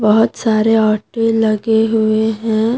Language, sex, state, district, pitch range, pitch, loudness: Hindi, female, Jharkhand, Deoghar, 215-225 Hz, 220 Hz, -14 LUFS